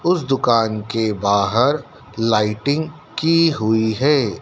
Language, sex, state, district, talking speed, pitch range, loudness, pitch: Hindi, male, Madhya Pradesh, Dhar, 110 wpm, 110-150 Hz, -18 LUFS, 120 Hz